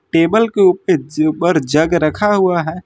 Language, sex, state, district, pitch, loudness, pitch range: Hindi, male, Uttar Pradesh, Lucknow, 170 Hz, -14 LUFS, 160-190 Hz